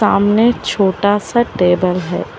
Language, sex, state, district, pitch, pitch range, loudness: Hindi, female, Telangana, Hyderabad, 205 Hz, 180-215 Hz, -14 LUFS